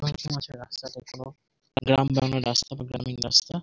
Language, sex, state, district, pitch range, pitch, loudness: Bengali, male, West Bengal, Jhargram, 125-140 Hz, 130 Hz, -26 LUFS